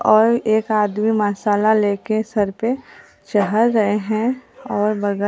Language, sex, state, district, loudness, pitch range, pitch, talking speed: Hindi, female, Bihar, Katihar, -18 LUFS, 205-220 Hz, 215 Hz, 150 wpm